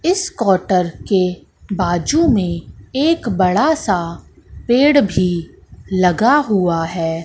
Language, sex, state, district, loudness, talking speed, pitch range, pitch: Hindi, female, Madhya Pradesh, Katni, -16 LUFS, 110 wpm, 175-265 Hz, 190 Hz